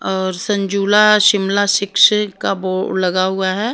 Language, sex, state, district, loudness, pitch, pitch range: Hindi, female, Himachal Pradesh, Shimla, -15 LUFS, 200 Hz, 190-210 Hz